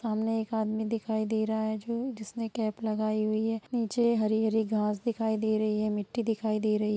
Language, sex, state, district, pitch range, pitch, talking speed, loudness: Hindi, female, Bihar, Sitamarhi, 215-225 Hz, 220 Hz, 215 wpm, -30 LUFS